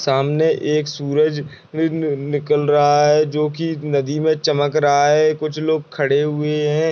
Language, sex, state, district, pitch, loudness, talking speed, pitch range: Hindi, male, Bihar, Purnia, 150 Hz, -18 LUFS, 155 wpm, 145-155 Hz